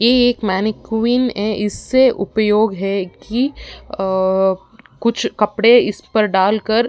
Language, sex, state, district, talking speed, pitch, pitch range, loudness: Hindi, female, Uttar Pradesh, Ghazipur, 150 wpm, 215 Hz, 195-235 Hz, -16 LUFS